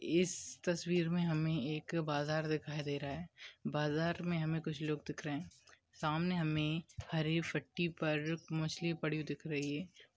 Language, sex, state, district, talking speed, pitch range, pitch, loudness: Hindi, male, Maharashtra, Aurangabad, 170 wpm, 150-170 Hz, 160 Hz, -38 LUFS